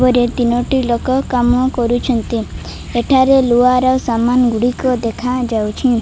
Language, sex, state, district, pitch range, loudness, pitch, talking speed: Odia, female, Odisha, Malkangiri, 235-255 Hz, -15 LUFS, 245 Hz, 110 wpm